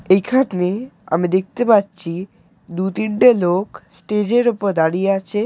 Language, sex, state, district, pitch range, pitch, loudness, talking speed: Bengali, male, West Bengal, Jalpaiguri, 185-215 Hz, 195 Hz, -18 LUFS, 130 wpm